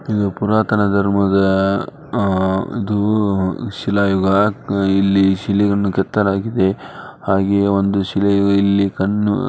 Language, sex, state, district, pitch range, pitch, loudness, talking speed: Kannada, male, Karnataka, Dharwad, 95-105 Hz, 100 Hz, -17 LUFS, 95 wpm